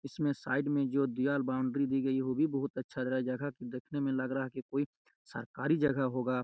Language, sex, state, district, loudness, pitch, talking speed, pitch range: Hindi, male, Chhattisgarh, Raigarh, -34 LUFS, 135 Hz, 215 wpm, 130-140 Hz